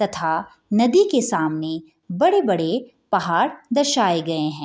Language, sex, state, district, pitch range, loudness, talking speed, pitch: Hindi, female, Bihar, Madhepura, 160-255 Hz, -20 LUFS, 115 wpm, 200 Hz